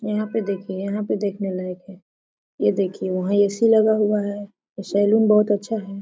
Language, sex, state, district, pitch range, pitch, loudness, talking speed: Hindi, female, Chhattisgarh, Korba, 195-210 Hz, 205 Hz, -21 LUFS, 210 wpm